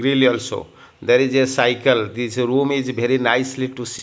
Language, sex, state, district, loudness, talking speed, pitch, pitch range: English, male, Odisha, Malkangiri, -19 LUFS, 195 wpm, 125 Hz, 120-130 Hz